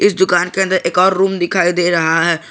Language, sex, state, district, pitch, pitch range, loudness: Hindi, male, Jharkhand, Garhwa, 180 Hz, 175-190 Hz, -14 LUFS